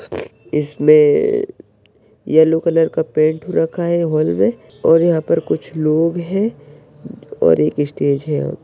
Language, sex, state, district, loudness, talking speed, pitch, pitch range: Hindi, male, Maharashtra, Solapur, -16 LUFS, 130 wpm, 165 Hz, 155-210 Hz